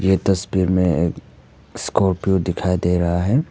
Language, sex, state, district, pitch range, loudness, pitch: Hindi, male, Arunachal Pradesh, Papum Pare, 90-95 Hz, -19 LUFS, 90 Hz